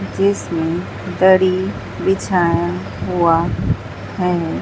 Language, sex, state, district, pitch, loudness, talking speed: Hindi, female, Bihar, Katihar, 170 Hz, -18 LUFS, 65 wpm